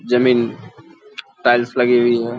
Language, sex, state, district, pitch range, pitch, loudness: Hindi, male, Bihar, Araria, 120-125 Hz, 120 Hz, -16 LUFS